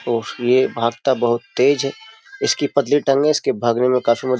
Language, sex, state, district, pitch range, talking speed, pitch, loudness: Hindi, male, Uttar Pradesh, Jyotiba Phule Nagar, 120-145 Hz, 205 wpm, 130 Hz, -18 LUFS